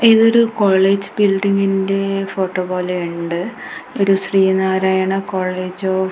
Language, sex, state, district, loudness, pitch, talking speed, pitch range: Malayalam, female, Kerala, Kasaragod, -17 LUFS, 195 Hz, 110 wpm, 185-195 Hz